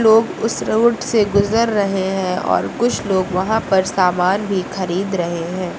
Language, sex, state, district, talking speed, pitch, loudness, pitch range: Hindi, female, Uttar Pradesh, Lucknow, 175 wpm, 195 Hz, -18 LUFS, 185-220 Hz